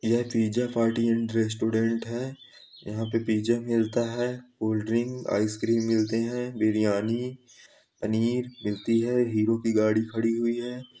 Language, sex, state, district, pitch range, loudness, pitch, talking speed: Hindi, male, Uttar Pradesh, Ghazipur, 110-120 Hz, -27 LUFS, 115 Hz, 140 wpm